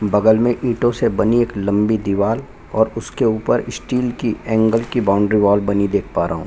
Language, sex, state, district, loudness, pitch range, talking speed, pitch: Hindi, male, Chhattisgarh, Bastar, -18 LUFS, 100-120 Hz, 215 wpm, 110 Hz